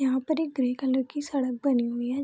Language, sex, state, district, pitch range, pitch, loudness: Hindi, female, Bihar, Vaishali, 250-280 Hz, 265 Hz, -27 LUFS